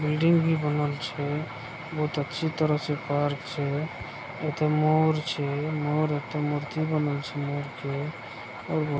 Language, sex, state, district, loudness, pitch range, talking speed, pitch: Maithili, male, Bihar, Begusarai, -28 LUFS, 145-155 Hz, 155 wpm, 150 Hz